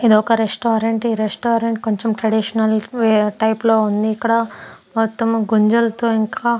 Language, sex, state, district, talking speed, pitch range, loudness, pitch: Telugu, female, Andhra Pradesh, Sri Satya Sai, 125 wpm, 220-230 Hz, -17 LUFS, 225 Hz